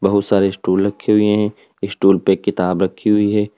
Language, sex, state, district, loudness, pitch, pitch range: Hindi, male, Uttar Pradesh, Lalitpur, -16 LUFS, 100 Hz, 95-105 Hz